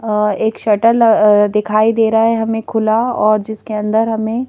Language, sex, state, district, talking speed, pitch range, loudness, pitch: Hindi, female, Madhya Pradesh, Bhopal, 175 wpm, 215-225 Hz, -14 LUFS, 220 Hz